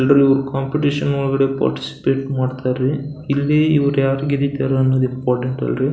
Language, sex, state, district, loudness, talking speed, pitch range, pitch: Kannada, male, Karnataka, Belgaum, -18 LUFS, 130 wpm, 130-140 Hz, 135 Hz